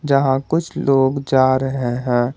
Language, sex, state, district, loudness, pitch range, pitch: Hindi, male, Jharkhand, Garhwa, -18 LUFS, 130-140 Hz, 135 Hz